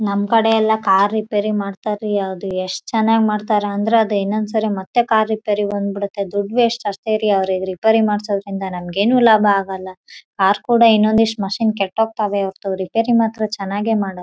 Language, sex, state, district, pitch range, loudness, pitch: Kannada, female, Karnataka, Raichur, 195-220 Hz, -17 LUFS, 205 Hz